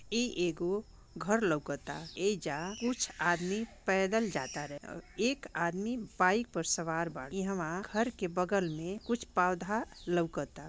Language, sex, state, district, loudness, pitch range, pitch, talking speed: Bhojpuri, female, Bihar, Gopalganj, -34 LUFS, 170-220 Hz, 185 Hz, 140 wpm